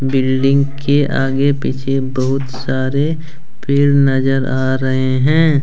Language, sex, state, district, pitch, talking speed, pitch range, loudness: Hindi, male, Jharkhand, Deoghar, 135 Hz, 115 wpm, 130-140 Hz, -15 LUFS